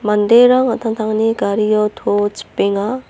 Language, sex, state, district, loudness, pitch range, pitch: Garo, female, Meghalaya, North Garo Hills, -15 LUFS, 205-230 Hz, 215 Hz